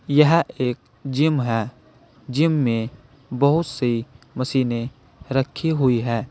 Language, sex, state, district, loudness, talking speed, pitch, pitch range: Hindi, male, Uttar Pradesh, Saharanpur, -21 LUFS, 115 wpm, 130 Hz, 120-145 Hz